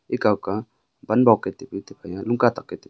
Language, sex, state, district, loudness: Wancho, male, Arunachal Pradesh, Longding, -22 LUFS